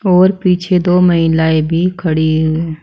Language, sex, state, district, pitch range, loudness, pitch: Hindi, female, Uttar Pradesh, Saharanpur, 160-180 Hz, -13 LUFS, 170 Hz